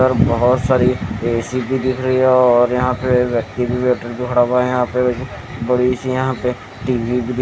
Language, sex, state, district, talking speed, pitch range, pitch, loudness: Hindi, male, Chandigarh, Chandigarh, 210 wpm, 120-125 Hz, 125 Hz, -17 LUFS